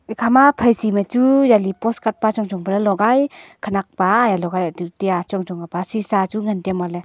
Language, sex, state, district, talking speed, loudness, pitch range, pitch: Wancho, female, Arunachal Pradesh, Longding, 215 wpm, -18 LUFS, 185-230 Hz, 210 Hz